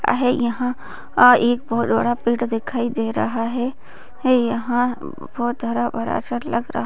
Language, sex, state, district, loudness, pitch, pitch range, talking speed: Hindi, female, Chhattisgarh, Bastar, -20 LUFS, 240 Hz, 235-245 Hz, 155 wpm